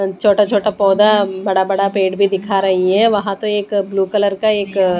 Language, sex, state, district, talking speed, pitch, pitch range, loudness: Hindi, female, Odisha, Nuapada, 205 wpm, 200 Hz, 195-205 Hz, -15 LUFS